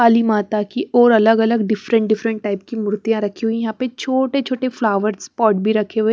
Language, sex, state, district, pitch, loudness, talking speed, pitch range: Hindi, female, Haryana, Charkhi Dadri, 225 Hz, -18 LUFS, 215 wpm, 215-235 Hz